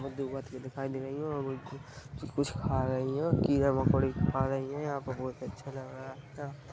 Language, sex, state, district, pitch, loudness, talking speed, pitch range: Hindi, male, Chhattisgarh, Rajnandgaon, 135 Hz, -33 LUFS, 195 wpm, 130-140 Hz